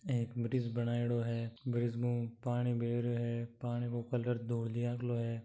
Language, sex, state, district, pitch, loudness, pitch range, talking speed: Marwari, male, Rajasthan, Nagaur, 120 Hz, -37 LUFS, 115-120 Hz, 185 wpm